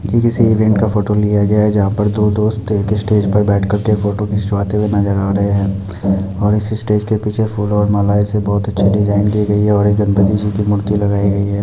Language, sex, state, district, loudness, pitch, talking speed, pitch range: Hindi, male, Bihar, Muzaffarpur, -15 LUFS, 105 Hz, 245 wpm, 100-105 Hz